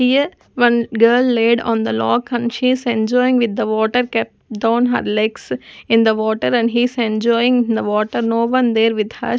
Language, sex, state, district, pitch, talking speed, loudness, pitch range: English, female, Punjab, Kapurthala, 235 Hz, 210 wpm, -16 LUFS, 225-245 Hz